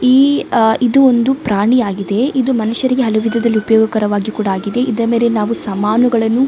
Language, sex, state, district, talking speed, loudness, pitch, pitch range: Kannada, female, Karnataka, Dakshina Kannada, 155 wpm, -14 LUFS, 230 Hz, 215-250 Hz